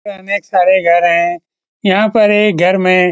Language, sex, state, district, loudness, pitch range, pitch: Hindi, male, Bihar, Lakhisarai, -12 LUFS, 175-205 Hz, 190 Hz